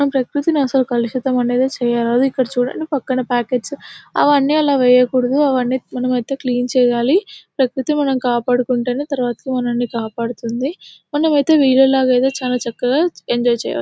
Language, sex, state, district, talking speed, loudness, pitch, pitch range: Telugu, female, Telangana, Nalgonda, 135 wpm, -17 LUFS, 255 Hz, 245-275 Hz